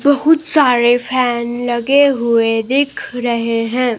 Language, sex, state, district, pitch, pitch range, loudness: Hindi, female, Himachal Pradesh, Shimla, 245 Hz, 235-280 Hz, -14 LUFS